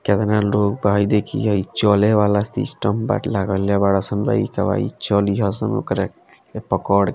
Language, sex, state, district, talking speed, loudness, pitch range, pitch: Bhojpuri, male, Bihar, Gopalganj, 175 wpm, -19 LUFS, 100-110 Hz, 105 Hz